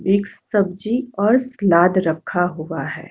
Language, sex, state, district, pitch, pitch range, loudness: Hindi, female, Uttarakhand, Tehri Garhwal, 185 Hz, 170-210 Hz, -19 LUFS